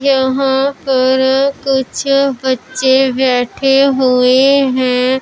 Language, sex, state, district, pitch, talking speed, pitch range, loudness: Hindi, female, Punjab, Pathankot, 265 Hz, 80 wpm, 260-275 Hz, -12 LUFS